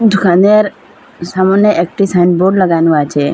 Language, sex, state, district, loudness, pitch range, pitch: Bengali, female, Assam, Hailakandi, -11 LUFS, 170-200 Hz, 185 Hz